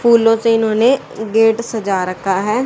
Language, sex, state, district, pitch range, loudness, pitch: Hindi, female, Haryana, Rohtak, 210-230 Hz, -15 LUFS, 225 Hz